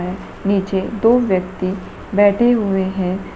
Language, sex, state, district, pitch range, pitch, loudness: Hindi, female, Uttar Pradesh, Shamli, 185-205 Hz, 195 Hz, -17 LUFS